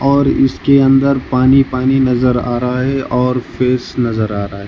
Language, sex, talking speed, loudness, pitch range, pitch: Hindi, male, 190 wpm, -13 LUFS, 125-135 Hz, 125 Hz